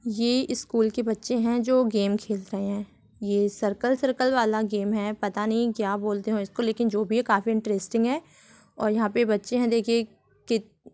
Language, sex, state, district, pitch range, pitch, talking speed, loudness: Hindi, female, Bihar, Supaul, 210-235 Hz, 220 Hz, 205 wpm, -25 LUFS